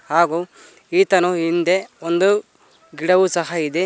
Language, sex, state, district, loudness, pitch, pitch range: Kannada, male, Karnataka, Koppal, -18 LUFS, 175 Hz, 170-185 Hz